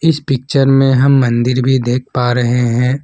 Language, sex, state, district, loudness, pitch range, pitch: Hindi, male, Assam, Kamrup Metropolitan, -13 LUFS, 125-135 Hz, 130 Hz